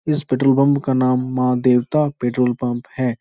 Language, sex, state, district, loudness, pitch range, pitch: Hindi, male, Bihar, Supaul, -18 LUFS, 125-140 Hz, 130 Hz